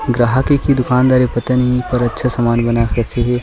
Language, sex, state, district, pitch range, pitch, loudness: Chhattisgarhi, male, Chhattisgarh, Sukma, 120-125 Hz, 125 Hz, -15 LUFS